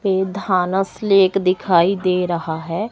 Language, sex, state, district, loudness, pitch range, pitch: Hindi, male, Chandigarh, Chandigarh, -18 LUFS, 180-195 Hz, 185 Hz